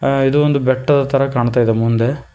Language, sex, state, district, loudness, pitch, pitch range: Kannada, male, Karnataka, Koppal, -15 LUFS, 135 Hz, 120-140 Hz